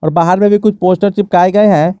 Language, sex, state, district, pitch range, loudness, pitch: Hindi, male, Jharkhand, Garhwa, 175-205 Hz, -10 LUFS, 185 Hz